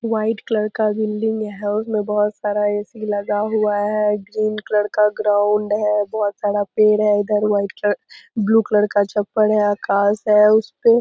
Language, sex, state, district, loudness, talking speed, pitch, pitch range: Hindi, female, Bihar, Begusarai, -19 LUFS, 180 wpm, 210 Hz, 205-215 Hz